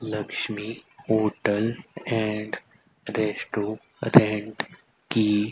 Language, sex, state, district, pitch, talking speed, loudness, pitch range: Hindi, male, Haryana, Rohtak, 110 Hz, 55 wpm, -25 LUFS, 105-110 Hz